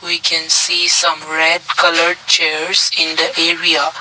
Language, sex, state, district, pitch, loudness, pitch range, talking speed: English, male, Assam, Kamrup Metropolitan, 170 Hz, -13 LUFS, 165-175 Hz, 150 wpm